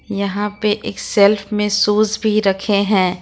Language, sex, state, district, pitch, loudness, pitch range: Hindi, female, Jharkhand, Ranchi, 205 Hz, -17 LUFS, 200-210 Hz